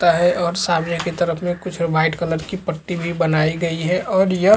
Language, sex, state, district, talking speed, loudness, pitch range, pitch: Chhattisgarhi, male, Chhattisgarh, Jashpur, 235 wpm, -20 LUFS, 165-180 Hz, 170 Hz